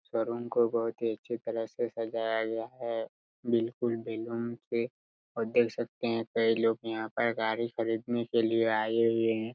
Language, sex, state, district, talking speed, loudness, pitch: Hindi, male, Chhattisgarh, Raigarh, 175 wpm, -31 LUFS, 115 Hz